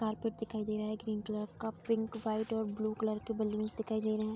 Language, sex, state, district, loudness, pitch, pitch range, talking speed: Hindi, female, Bihar, Vaishali, -37 LUFS, 215 Hz, 215-220 Hz, 260 wpm